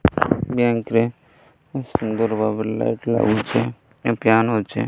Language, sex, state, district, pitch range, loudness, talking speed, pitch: Odia, male, Odisha, Malkangiri, 110-120 Hz, -21 LUFS, 125 wpm, 115 Hz